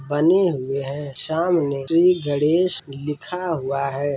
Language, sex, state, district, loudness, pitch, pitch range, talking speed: Hindi, male, Bihar, Saran, -21 LUFS, 150 Hz, 140-170 Hz, 130 wpm